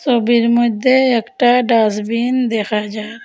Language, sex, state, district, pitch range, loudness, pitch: Bengali, female, Assam, Hailakandi, 220-245 Hz, -15 LUFS, 235 Hz